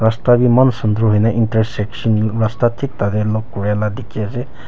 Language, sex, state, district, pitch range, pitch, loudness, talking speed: Nagamese, male, Nagaland, Kohima, 105-120 Hz, 110 Hz, -16 LUFS, 190 wpm